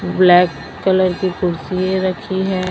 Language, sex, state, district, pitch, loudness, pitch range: Hindi, female, Maharashtra, Mumbai Suburban, 185 Hz, -16 LUFS, 180-190 Hz